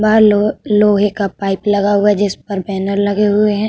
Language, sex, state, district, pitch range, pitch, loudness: Hindi, female, Uttar Pradesh, Budaun, 200-210 Hz, 205 Hz, -14 LUFS